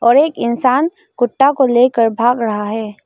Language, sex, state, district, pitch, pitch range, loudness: Hindi, female, Arunachal Pradesh, Lower Dibang Valley, 245 Hz, 230-275 Hz, -14 LUFS